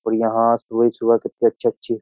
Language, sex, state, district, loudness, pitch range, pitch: Hindi, male, Uttar Pradesh, Jyotiba Phule Nagar, -19 LUFS, 115-120 Hz, 115 Hz